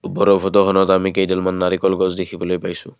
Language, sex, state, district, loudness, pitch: Assamese, male, Assam, Kamrup Metropolitan, -17 LUFS, 95 Hz